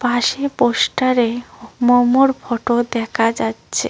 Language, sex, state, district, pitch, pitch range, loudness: Bengali, female, West Bengal, Cooch Behar, 245 Hz, 230-255 Hz, -17 LUFS